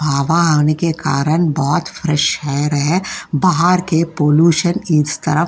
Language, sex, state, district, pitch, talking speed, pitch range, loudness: Hindi, female, Uttar Pradesh, Jyotiba Phule Nagar, 155 Hz, 155 wpm, 150-170 Hz, -15 LUFS